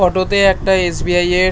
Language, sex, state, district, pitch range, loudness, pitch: Bengali, male, West Bengal, North 24 Parganas, 180-190 Hz, -14 LUFS, 185 Hz